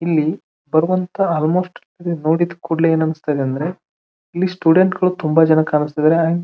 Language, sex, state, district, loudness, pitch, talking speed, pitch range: Kannada, male, Karnataka, Dharwad, -17 LUFS, 165 Hz, 175 wpm, 155-175 Hz